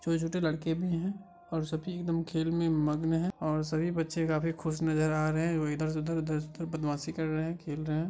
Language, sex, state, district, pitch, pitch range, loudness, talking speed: Hindi, male, Bihar, Madhepura, 160 Hz, 155-165 Hz, -32 LUFS, 275 wpm